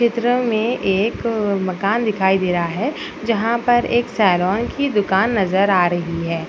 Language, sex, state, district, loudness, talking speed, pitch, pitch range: Hindi, female, Bihar, Madhepura, -18 LUFS, 165 wpm, 210 Hz, 190-235 Hz